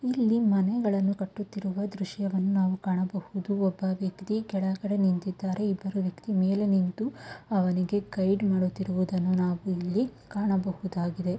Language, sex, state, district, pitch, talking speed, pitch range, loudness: Kannada, female, Karnataka, Mysore, 195 Hz, 100 wpm, 185-205 Hz, -28 LUFS